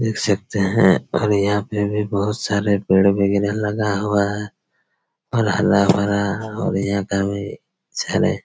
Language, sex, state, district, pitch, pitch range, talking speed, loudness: Hindi, male, Chhattisgarh, Raigarh, 100 Hz, 100-105 Hz, 135 wpm, -19 LUFS